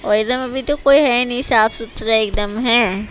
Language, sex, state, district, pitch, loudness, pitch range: Hindi, female, Himachal Pradesh, Shimla, 235 Hz, -15 LUFS, 220-255 Hz